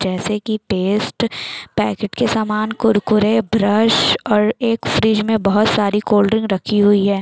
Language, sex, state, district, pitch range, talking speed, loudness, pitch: Hindi, female, Uttar Pradesh, Jalaun, 205-220 Hz, 160 wpm, -16 LUFS, 215 Hz